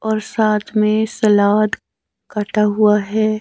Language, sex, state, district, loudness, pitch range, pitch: Hindi, male, Himachal Pradesh, Shimla, -16 LUFS, 210-215 Hz, 215 Hz